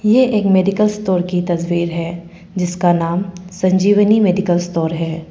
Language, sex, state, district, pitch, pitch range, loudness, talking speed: Hindi, female, Arunachal Pradesh, Papum Pare, 180 Hz, 175-195 Hz, -16 LUFS, 145 wpm